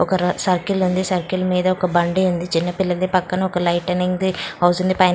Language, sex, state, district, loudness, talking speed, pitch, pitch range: Telugu, female, Andhra Pradesh, Srikakulam, -19 LUFS, 165 wpm, 185 Hz, 180-185 Hz